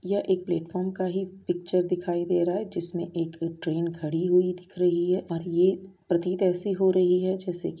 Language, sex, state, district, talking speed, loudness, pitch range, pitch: Hindi, female, Uttar Pradesh, Jyotiba Phule Nagar, 215 wpm, -27 LUFS, 175-185 Hz, 180 Hz